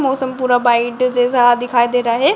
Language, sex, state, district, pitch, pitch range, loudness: Hindi, female, Bihar, Jamui, 245 Hz, 240-255 Hz, -15 LUFS